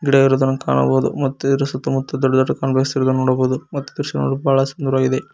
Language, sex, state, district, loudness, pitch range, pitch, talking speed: Kannada, male, Karnataka, Koppal, -18 LUFS, 130-135 Hz, 135 Hz, 180 wpm